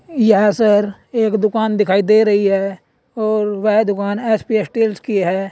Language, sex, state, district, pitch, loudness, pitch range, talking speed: Hindi, male, Uttar Pradesh, Saharanpur, 210 Hz, -16 LUFS, 200-220 Hz, 150 wpm